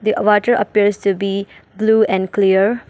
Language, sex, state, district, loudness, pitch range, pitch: English, female, Arunachal Pradesh, Papum Pare, -16 LUFS, 195-215 Hz, 205 Hz